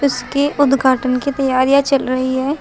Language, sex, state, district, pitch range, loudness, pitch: Hindi, female, Uttar Pradesh, Shamli, 255-280 Hz, -16 LUFS, 270 Hz